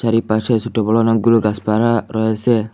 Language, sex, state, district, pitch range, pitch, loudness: Bengali, male, Assam, Hailakandi, 110-115 Hz, 110 Hz, -16 LUFS